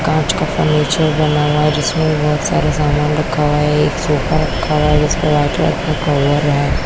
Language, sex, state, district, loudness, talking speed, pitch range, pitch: Hindi, female, Bihar, Kishanganj, -15 LUFS, 210 wpm, 150-155 Hz, 150 Hz